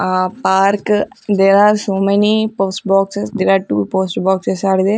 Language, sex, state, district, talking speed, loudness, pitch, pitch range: English, female, Punjab, Kapurthala, 180 wpm, -15 LUFS, 195 Hz, 190-205 Hz